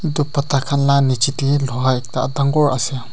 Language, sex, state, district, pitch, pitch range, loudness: Nagamese, male, Nagaland, Kohima, 140 Hz, 130-140 Hz, -18 LUFS